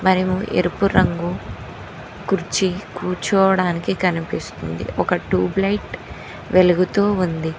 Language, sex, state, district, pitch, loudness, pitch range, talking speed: Telugu, female, Telangana, Mahabubabad, 185 Hz, -20 LUFS, 175-195 Hz, 85 wpm